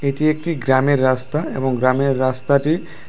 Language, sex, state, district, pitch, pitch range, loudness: Bengali, male, Tripura, West Tripura, 140 Hz, 130-155 Hz, -18 LUFS